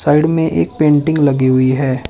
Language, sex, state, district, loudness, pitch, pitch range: Hindi, male, Uttar Pradesh, Shamli, -13 LUFS, 145 Hz, 130-155 Hz